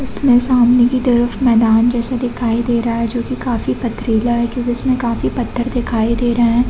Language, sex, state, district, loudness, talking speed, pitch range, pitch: Hindi, female, Chhattisgarh, Bastar, -15 LUFS, 205 wpm, 235-245 Hz, 240 Hz